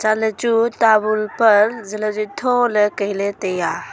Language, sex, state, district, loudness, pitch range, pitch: Wancho, female, Arunachal Pradesh, Longding, -18 LUFS, 210-230 Hz, 215 Hz